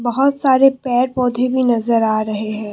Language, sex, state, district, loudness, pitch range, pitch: Hindi, female, Assam, Kamrup Metropolitan, -16 LUFS, 220-260 Hz, 245 Hz